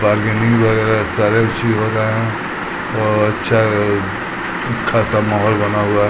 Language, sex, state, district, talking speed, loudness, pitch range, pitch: Hindi, male, Bihar, Patna, 140 wpm, -16 LUFS, 105-110 Hz, 110 Hz